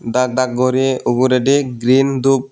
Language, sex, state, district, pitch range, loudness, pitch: Chakma, male, Tripura, Unakoti, 125-135 Hz, -15 LUFS, 130 Hz